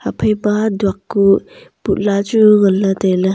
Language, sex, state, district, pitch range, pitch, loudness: Wancho, female, Arunachal Pradesh, Longding, 195-210 Hz, 200 Hz, -14 LUFS